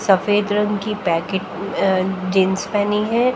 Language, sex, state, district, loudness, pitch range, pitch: Hindi, female, Haryana, Jhajjar, -19 LUFS, 190-210 Hz, 200 Hz